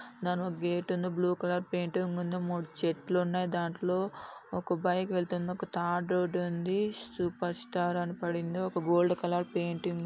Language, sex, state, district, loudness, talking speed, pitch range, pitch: Telugu, female, Andhra Pradesh, Anantapur, -32 LUFS, 155 wpm, 175-180 Hz, 180 Hz